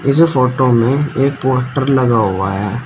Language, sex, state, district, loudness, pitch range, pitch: Hindi, male, Uttar Pradesh, Shamli, -14 LUFS, 120-135 Hz, 130 Hz